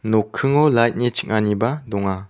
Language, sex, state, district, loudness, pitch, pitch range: Garo, male, Meghalaya, South Garo Hills, -19 LUFS, 110 Hz, 105-120 Hz